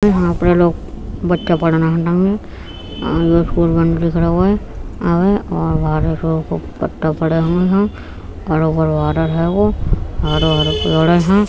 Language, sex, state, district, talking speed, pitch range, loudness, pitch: Hindi, female, Uttar Pradesh, Etah, 125 wpm, 160-175 Hz, -16 LUFS, 165 Hz